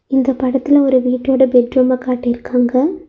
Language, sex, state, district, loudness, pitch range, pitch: Tamil, female, Tamil Nadu, Nilgiris, -14 LUFS, 250-265 Hz, 255 Hz